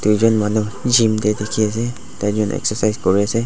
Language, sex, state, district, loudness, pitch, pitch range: Nagamese, male, Nagaland, Dimapur, -18 LUFS, 105 Hz, 105-110 Hz